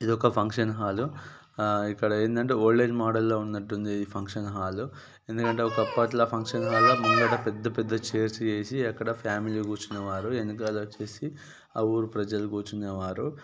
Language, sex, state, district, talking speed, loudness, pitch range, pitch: Telugu, male, Telangana, Nalgonda, 145 wpm, -28 LUFS, 105-115 Hz, 110 Hz